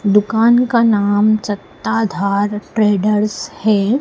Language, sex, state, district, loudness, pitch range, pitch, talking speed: Hindi, female, Madhya Pradesh, Dhar, -15 LUFS, 205-220 Hz, 210 Hz, 90 wpm